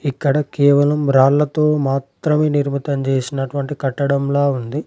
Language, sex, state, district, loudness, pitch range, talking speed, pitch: Telugu, male, Telangana, Adilabad, -17 LUFS, 135-145 Hz, 100 wpm, 140 Hz